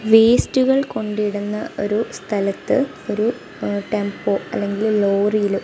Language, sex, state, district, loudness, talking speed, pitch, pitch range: Malayalam, female, Kerala, Kasaragod, -20 LUFS, 95 wpm, 210 Hz, 205-225 Hz